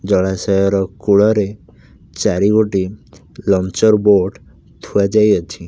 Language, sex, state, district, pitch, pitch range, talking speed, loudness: Odia, male, Odisha, Khordha, 100 Hz, 95-105 Hz, 65 wpm, -15 LUFS